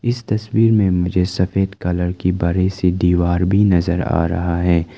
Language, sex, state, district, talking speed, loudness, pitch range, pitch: Hindi, male, Arunachal Pradesh, Lower Dibang Valley, 180 wpm, -17 LUFS, 90-100 Hz, 90 Hz